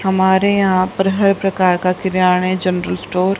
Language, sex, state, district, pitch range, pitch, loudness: Hindi, female, Haryana, Rohtak, 185-195 Hz, 185 Hz, -15 LUFS